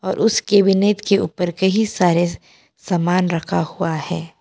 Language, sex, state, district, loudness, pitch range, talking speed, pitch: Hindi, female, Arunachal Pradesh, Papum Pare, -18 LUFS, 175-200 Hz, 135 wpm, 185 Hz